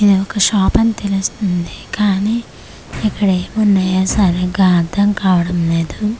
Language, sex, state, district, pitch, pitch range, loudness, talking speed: Telugu, female, Andhra Pradesh, Manyam, 195 Hz, 185-210 Hz, -15 LUFS, 95 wpm